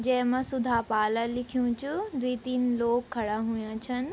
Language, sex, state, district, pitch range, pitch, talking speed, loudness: Garhwali, female, Uttarakhand, Tehri Garhwal, 230-255 Hz, 245 Hz, 175 wpm, -29 LUFS